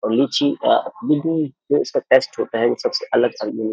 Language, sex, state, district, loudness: Hindi, male, Uttar Pradesh, Jyotiba Phule Nagar, -19 LUFS